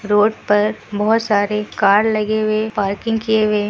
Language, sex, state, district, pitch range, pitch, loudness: Hindi, female, Bihar, Kishanganj, 205-220 Hz, 210 Hz, -17 LUFS